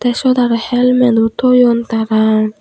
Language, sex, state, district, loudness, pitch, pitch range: Chakma, female, Tripura, Unakoti, -12 LUFS, 240 Hz, 225-250 Hz